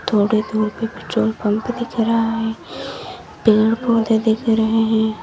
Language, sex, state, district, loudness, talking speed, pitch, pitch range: Hindi, female, Uttar Pradesh, Lalitpur, -18 LUFS, 150 wpm, 225 Hz, 220-230 Hz